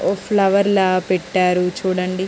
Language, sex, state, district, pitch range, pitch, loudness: Telugu, female, Andhra Pradesh, Guntur, 185-195 Hz, 185 Hz, -17 LUFS